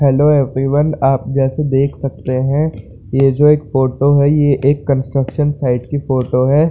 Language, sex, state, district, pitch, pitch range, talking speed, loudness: Hindi, male, Bihar, Saran, 140 Hz, 135-145 Hz, 170 wpm, -14 LUFS